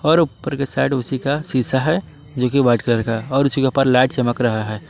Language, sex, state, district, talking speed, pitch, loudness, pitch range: Hindi, male, Jharkhand, Palamu, 235 wpm, 130 Hz, -18 LUFS, 120-140 Hz